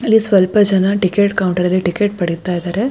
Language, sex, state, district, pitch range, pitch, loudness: Kannada, female, Karnataka, Shimoga, 180-205 Hz, 195 Hz, -14 LUFS